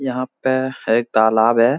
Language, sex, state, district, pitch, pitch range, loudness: Hindi, male, Bihar, Supaul, 125 Hz, 115-130 Hz, -17 LUFS